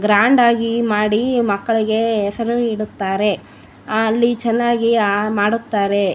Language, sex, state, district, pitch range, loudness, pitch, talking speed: Kannada, female, Karnataka, Bellary, 205-235 Hz, -17 LUFS, 220 Hz, 100 wpm